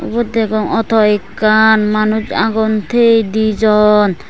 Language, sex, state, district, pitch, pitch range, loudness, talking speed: Chakma, female, Tripura, West Tripura, 215 Hz, 210-220 Hz, -13 LUFS, 110 wpm